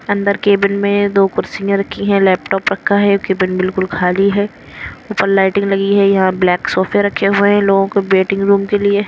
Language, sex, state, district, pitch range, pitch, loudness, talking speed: Hindi, female, Haryana, Rohtak, 190-200 Hz, 200 Hz, -14 LUFS, 205 wpm